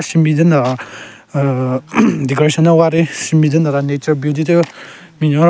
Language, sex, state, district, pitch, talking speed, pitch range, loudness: Rengma, male, Nagaland, Kohima, 155 Hz, 185 wpm, 140-165 Hz, -14 LUFS